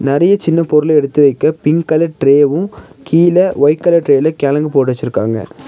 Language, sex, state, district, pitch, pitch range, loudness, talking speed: Tamil, male, Tamil Nadu, Nilgiris, 150 Hz, 140-165 Hz, -12 LUFS, 160 wpm